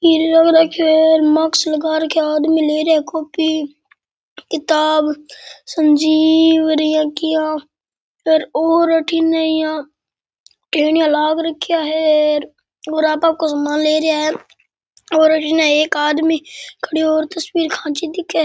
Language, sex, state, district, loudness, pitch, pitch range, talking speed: Rajasthani, male, Rajasthan, Nagaur, -15 LUFS, 315 Hz, 305-320 Hz, 125 wpm